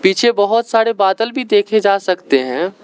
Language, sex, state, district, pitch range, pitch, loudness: Hindi, male, Arunachal Pradesh, Lower Dibang Valley, 190-225 Hz, 205 Hz, -15 LUFS